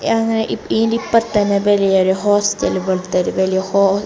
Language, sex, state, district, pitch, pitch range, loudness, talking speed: Malayalam, female, Kerala, Kasaragod, 205 Hz, 190-220 Hz, -16 LUFS, 160 wpm